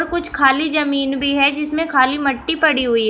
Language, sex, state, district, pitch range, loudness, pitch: Hindi, female, Uttar Pradesh, Shamli, 270-310 Hz, -16 LUFS, 280 Hz